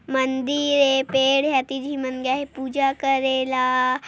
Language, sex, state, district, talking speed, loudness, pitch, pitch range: Hindi, female, Chhattisgarh, Korba, 90 wpm, -21 LUFS, 265 Hz, 260-275 Hz